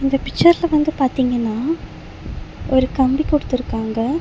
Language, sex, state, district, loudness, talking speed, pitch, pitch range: Tamil, female, Tamil Nadu, Chennai, -18 LUFS, 100 wpm, 265 Hz, 255-300 Hz